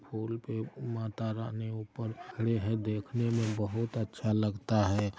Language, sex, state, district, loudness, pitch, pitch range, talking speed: Maithili, male, Bihar, Darbhanga, -34 LUFS, 110 Hz, 110-115 Hz, 150 wpm